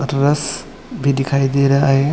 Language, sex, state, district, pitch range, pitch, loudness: Hindi, male, Chhattisgarh, Bilaspur, 135-140 Hz, 140 Hz, -16 LUFS